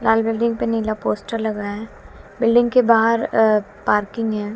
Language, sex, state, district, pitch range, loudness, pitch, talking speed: Hindi, female, Haryana, Jhajjar, 210-230 Hz, -19 LUFS, 225 Hz, 185 wpm